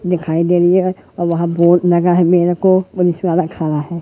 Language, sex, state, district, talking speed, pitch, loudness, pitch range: Hindi, male, Madhya Pradesh, Katni, 225 wpm, 175 Hz, -14 LUFS, 170-180 Hz